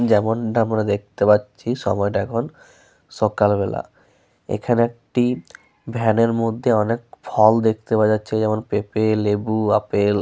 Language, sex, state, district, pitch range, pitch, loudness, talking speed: Bengali, male, Jharkhand, Sahebganj, 105-115 Hz, 110 Hz, -20 LUFS, 130 wpm